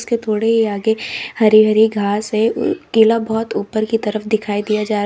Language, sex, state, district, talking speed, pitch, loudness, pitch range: Hindi, female, Uttar Pradesh, Lalitpur, 165 wpm, 215 Hz, -16 LUFS, 210-225 Hz